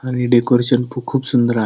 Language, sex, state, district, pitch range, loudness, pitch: Marathi, male, Maharashtra, Pune, 120-125 Hz, -16 LUFS, 125 Hz